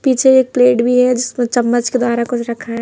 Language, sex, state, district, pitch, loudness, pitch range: Hindi, male, Madhya Pradesh, Bhopal, 245 Hz, -14 LUFS, 235-250 Hz